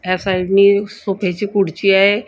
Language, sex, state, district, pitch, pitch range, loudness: Marathi, female, Maharashtra, Gondia, 195 Hz, 190-205 Hz, -15 LUFS